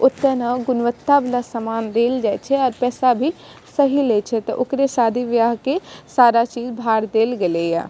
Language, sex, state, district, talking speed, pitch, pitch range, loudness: Maithili, female, Bihar, Madhepura, 190 wpm, 245 Hz, 230-260 Hz, -19 LUFS